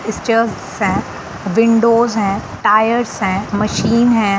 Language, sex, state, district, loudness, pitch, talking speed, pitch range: Hindi, female, Bihar, Sitamarhi, -15 LUFS, 220 Hz, 80 wpm, 200-230 Hz